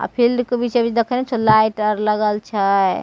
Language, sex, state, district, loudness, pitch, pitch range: Maithili, female, Bihar, Begusarai, -18 LUFS, 220 Hz, 210-240 Hz